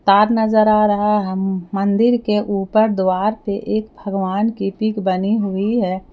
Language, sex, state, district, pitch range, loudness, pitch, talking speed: Hindi, female, Jharkhand, Palamu, 195-215 Hz, -18 LUFS, 205 Hz, 165 wpm